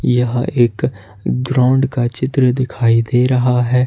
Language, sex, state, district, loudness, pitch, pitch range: Hindi, male, Jharkhand, Ranchi, -15 LUFS, 125 Hz, 120-130 Hz